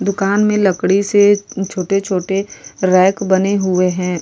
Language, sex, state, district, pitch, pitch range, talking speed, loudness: Hindi, female, Goa, North and South Goa, 195 Hz, 185-200 Hz, 140 wpm, -15 LUFS